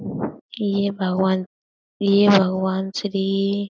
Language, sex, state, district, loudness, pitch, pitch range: Hindi, female, Uttar Pradesh, Budaun, -21 LUFS, 195 Hz, 190-200 Hz